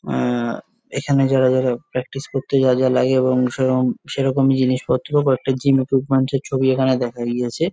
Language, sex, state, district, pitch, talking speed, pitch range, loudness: Bengali, male, West Bengal, Jalpaiguri, 130 Hz, 165 wpm, 125-135 Hz, -19 LUFS